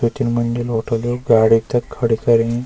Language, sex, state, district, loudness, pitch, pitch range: Garhwali, male, Uttarakhand, Uttarkashi, -17 LUFS, 115 Hz, 115-120 Hz